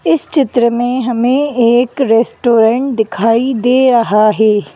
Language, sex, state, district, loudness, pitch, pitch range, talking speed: Hindi, female, Madhya Pradesh, Bhopal, -12 LUFS, 240 Hz, 225-255 Hz, 125 wpm